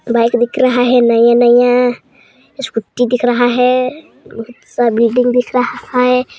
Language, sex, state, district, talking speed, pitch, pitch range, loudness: Hindi, male, Chhattisgarh, Balrampur, 130 wpm, 245 Hz, 240-250 Hz, -12 LUFS